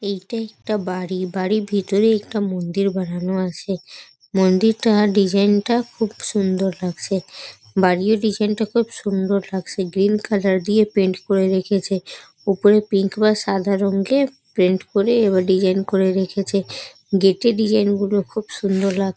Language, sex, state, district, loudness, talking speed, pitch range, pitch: Bengali, female, West Bengal, North 24 Parganas, -19 LUFS, 140 wpm, 190-210 Hz, 200 Hz